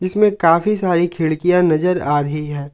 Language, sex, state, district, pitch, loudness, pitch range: Hindi, male, Jharkhand, Ranchi, 170 Hz, -16 LUFS, 155-180 Hz